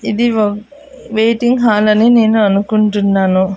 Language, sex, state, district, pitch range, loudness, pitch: Telugu, female, Andhra Pradesh, Annamaya, 205-230 Hz, -12 LUFS, 215 Hz